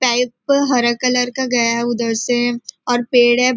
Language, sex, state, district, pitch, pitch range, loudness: Hindi, female, Maharashtra, Nagpur, 245 Hz, 235-250 Hz, -17 LUFS